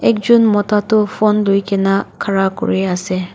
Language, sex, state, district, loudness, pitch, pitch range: Nagamese, female, Nagaland, Dimapur, -15 LUFS, 200 Hz, 195-210 Hz